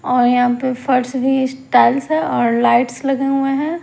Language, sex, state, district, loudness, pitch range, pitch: Hindi, female, Bihar, Kaimur, -16 LUFS, 245-270 Hz, 260 Hz